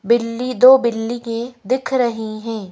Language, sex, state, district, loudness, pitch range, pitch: Hindi, female, Madhya Pradesh, Bhopal, -17 LUFS, 225-250 Hz, 235 Hz